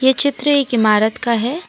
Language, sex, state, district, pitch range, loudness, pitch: Hindi, female, Assam, Kamrup Metropolitan, 230-285 Hz, -15 LUFS, 255 Hz